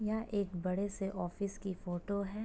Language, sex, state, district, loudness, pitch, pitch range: Hindi, female, Uttar Pradesh, Gorakhpur, -38 LUFS, 200 Hz, 185-205 Hz